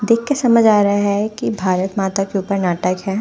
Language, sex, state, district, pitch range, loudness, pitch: Hindi, female, Punjab, Fazilka, 195-215 Hz, -17 LUFS, 200 Hz